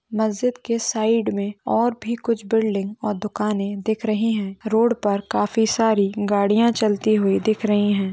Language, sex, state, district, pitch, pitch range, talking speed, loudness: Hindi, female, Maharashtra, Nagpur, 215 Hz, 205-225 Hz, 170 wpm, -21 LUFS